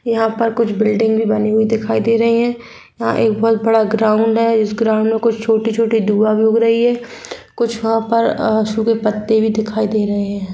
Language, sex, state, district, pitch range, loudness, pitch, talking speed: Hindi, female, Bihar, Gopalganj, 220-230 Hz, -15 LUFS, 225 Hz, 215 wpm